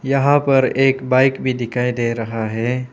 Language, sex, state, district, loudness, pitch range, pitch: Hindi, male, Arunachal Pradesh, Papum Pare, -17 LUFS, 120-135 Hz, 130 Hz